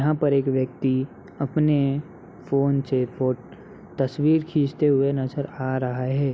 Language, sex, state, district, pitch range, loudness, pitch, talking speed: Hindi, male, Uttar Pradesh, Hamirpur, 130-145 Hz, -23 LUFS, 140 Hz, 130 wpm